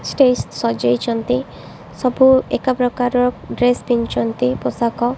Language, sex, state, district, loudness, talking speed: Odia, female, Odisha, Malkangiri, -17 LUFS, 115 wpm